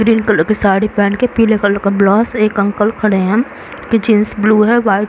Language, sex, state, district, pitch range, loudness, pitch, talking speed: Hindi, female, Chhattisgarh, Raigarh, 200-225 Hz, -13 LUFS, 215 Hz, 200 wpm